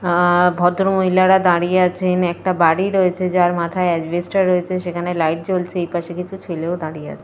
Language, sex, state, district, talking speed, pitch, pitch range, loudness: Bengali, female, Jharkhand, Jamtara, 165 wpm, 180 Hz, 175-185 Hz, -18 LUFS